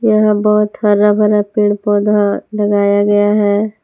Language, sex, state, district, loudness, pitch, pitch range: Hindi, female, Jharkhand, Palamu, -13 LUFS, 210 Hz, 205-210 Hz